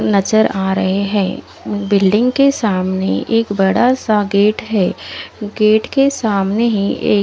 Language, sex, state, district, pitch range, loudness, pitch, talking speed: Hindi, female, Odisha, Khordha, 195-225 Hz, -15 LUFS, 210 Hz, 135 wpm